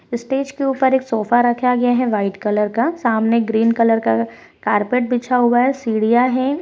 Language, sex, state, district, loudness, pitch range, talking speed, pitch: Hindi, female, Rajasthan, Churu, -17 LUFS, 220-255 Hz, 190 wpm, 240 Hz